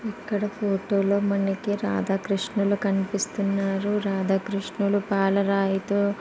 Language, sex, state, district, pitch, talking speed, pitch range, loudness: Telugu, female, Andhra Pradesh, Guntur, 200 Hz, 85 wpm, 195-205 Hz, -25 LUFS